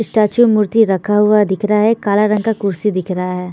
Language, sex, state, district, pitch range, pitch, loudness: Hindi, female, Bihar, Patna, 190-215 Hz, 210 Hz, -14 LUFS